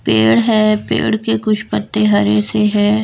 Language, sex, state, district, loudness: Hindi, female, Bihar, Patna, -14 LUFS